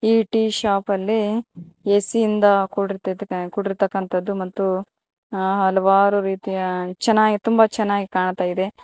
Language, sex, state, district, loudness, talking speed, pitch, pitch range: Kannada, female, Karnataka, Koppal, -20 LUFS, 100 wpm, 195 Hz, 190-215 Hz